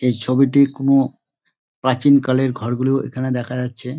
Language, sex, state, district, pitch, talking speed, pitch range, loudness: Bengali, male, West Bengal, Dakshin Dinajpur, 130 Hz, 150 wpm, 125-135 Hz, -18 LUFS